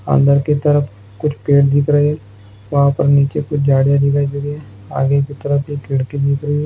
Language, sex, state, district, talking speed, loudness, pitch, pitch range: Hindi, male, Bihar, Araria, 215 wpm, -16 LUFS, 140 Hz, 140-145 Hz